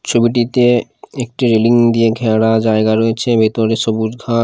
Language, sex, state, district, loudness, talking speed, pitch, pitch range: Bengali, male, Odisha, Khordha, -14 LUFS, 135 wpm, 115 Hz, 110-120 Hz